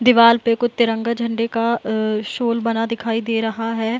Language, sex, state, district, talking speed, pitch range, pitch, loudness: Hindi, female, Uttar Pradesh, Hamirpur, 195 wpm, 225-235 Hz, 230 Hz, -19 LUFS